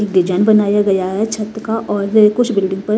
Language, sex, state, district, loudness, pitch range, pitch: Hindi, female, Himachal Pradesh, Shimla, -15 LUFS, 195-215 Hz, 210 Hz